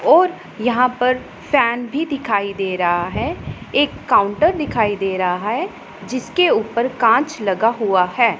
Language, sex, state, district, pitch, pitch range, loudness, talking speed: Hindi, female, Punjab, Pathankot, 230 Hz, 195-255 Hz, -18 LUFS, 150 wpm